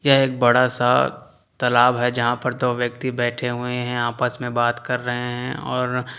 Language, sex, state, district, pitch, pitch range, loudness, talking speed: Hindi, male, Chhattisgarh, Raipur, 125 Hz, 120-125 Hz, -21 LUFS, 195 wpm